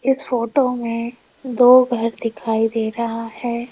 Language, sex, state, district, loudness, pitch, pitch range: Hindi, female, Rajasthan, Jaipur, -19 LUFS, 235 Hz, 230-250 Hz